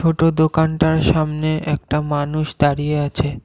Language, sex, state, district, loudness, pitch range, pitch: Bengali, male, Assam, Kamrup Metropolitan, -18 LUFS, 145-160 Hz, 155 Hz